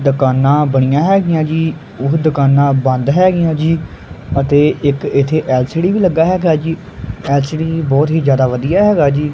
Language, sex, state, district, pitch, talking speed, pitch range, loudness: Punjabi, male, Punjab, Kapurthala, 150 Hz, 155 wpm, 140-165 Hz, -13 LUFS